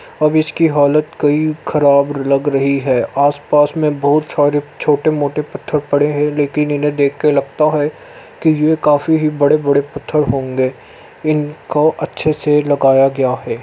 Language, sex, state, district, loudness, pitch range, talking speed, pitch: Hindi, male, Uttar Pradesh, Muzaffarnagar, -15 LUFS, 140-150 Hz, 165 wpm, 145 Hz